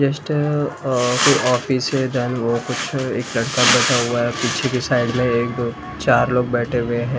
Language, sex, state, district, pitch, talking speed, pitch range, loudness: Hindi, male, Maharashtra, Mumbai Suburban, 125 Hz, 210 wpm, 120-130 Hz, -19 LUFS